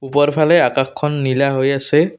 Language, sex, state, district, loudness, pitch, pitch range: Assamese, male, Assam, Kamrup Metropolitan, -15 LUFS, 140 Hz, 135-150 Hz